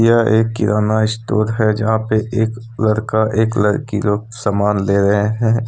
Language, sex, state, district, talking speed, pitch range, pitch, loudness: Hindi, male, Jharkhand, Deoghar, 170 wpm, 105-115 Hz, 110 Hz, -16 LUFS